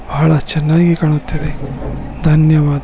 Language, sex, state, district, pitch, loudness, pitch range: Kannada, male, Karnataka, Bellary, 150 Hz, -14 LUFS, 140-155 Hz